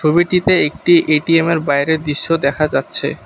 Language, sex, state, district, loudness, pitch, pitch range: Bengali, male, West Bengal, Alipurduar, -15 LUFS, 160 Hz, 150-170 Hz